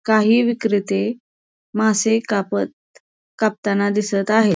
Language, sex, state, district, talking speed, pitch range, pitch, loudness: Marathi, female, Maharashtra, Pune, 90 wpm, 200-220 Hz, 215 Hz, -19 LUFS